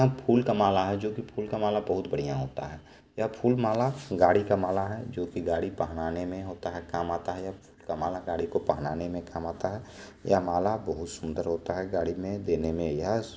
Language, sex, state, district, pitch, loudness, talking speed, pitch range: Maithili, male, Bihar, Supaul, 95 Hz, -29 LUFS, 230 wpm, 85-105 Hz